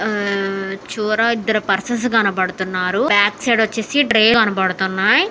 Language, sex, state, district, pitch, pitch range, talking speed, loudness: Telugu, female, Andhra Pradesh, Anantapur, 215 Hz, 195-230 Hz, 115 wpm, -17 LUFS